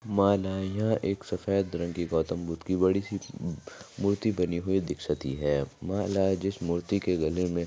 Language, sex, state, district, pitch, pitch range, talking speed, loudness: Hindi, female, Maharashtra, Aurangabad, 95 Hz, 85-100 Hz, 190 wpm, -29 LUFS